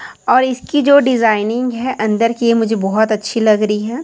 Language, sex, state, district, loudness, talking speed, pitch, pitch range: Hindi, female, Chhattisgarh, Raipur, -14 LUFS, 210 wpm, 230 Hz, 215-255 Hz